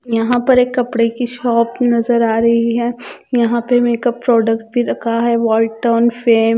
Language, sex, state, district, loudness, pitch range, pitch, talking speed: Hindi, female, Punjab, Kapurthala, -15 LUFS, 230-245 Hz, 235 Hz, 180 wpm